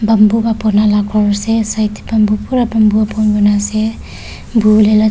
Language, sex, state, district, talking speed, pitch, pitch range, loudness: Nagamese, female, Nagaland, Kohima, 210 wpm, 215 Hz, 210-220 Hz, -13 LUFS